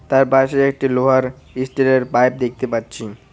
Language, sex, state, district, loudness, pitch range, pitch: Bengali, male, West Bengal, Cooch Behar, -17 LUFS, 125-135 Hz, 130 Hz